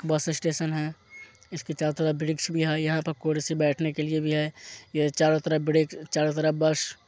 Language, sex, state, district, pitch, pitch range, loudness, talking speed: Hindi, male, Bihar, Muzaffarpur, 155 Hz, 155-160 Hz, -26 LUFS, 210 wpm